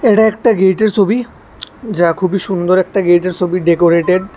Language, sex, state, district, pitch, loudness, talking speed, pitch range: Bengali, male, Tripura, West Tripura, 190 Hz, -13 LUFS, 165 wpm, 180-215 Hz